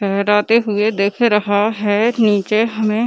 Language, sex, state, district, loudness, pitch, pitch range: Hindi, female, Bihar, Gaya, -15 LUFS, 215 Hz, 205-225 Hz